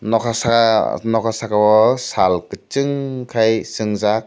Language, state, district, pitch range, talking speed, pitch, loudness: Kokborok, Tripura, Dhalai, 110-115 Hz, 125 wpm, 115 Hz, -17 LUFS